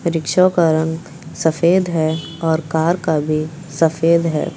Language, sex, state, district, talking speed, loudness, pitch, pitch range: Hindi, female, Uttar Pradesh, Lucknow, 145 wpm, -17 LUFS, 160 Hz, 160-170 Hz